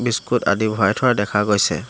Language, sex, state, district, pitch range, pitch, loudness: Assamese, male, Assam, Hailakandi, 105-120 Hz, 105 Hz, -18 LUFS